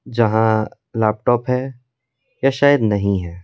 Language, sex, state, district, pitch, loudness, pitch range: Hindi, male, Delhi, New Delhi, 120 Hz, -18 LUFS, 110-125 Hz